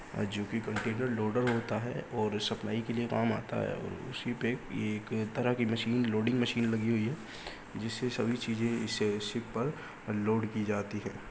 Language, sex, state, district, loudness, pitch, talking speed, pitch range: Hindi, male, Uttar Pradesh, Muzaffarnagar, -33 LUFS, 115 Hz, 190 wpm, 105-120 Hz